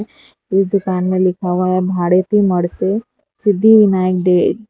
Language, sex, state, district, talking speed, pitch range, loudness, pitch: Hindi, female, Gujarat, Valsad, 165 wpm, 185-205 Hz, -15 LUFS, 185 Hz